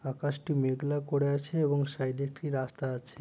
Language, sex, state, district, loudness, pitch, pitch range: Bengali, male, West Bengal, Purulia, -32 LUFS, 140 Hz, 130-145 Hz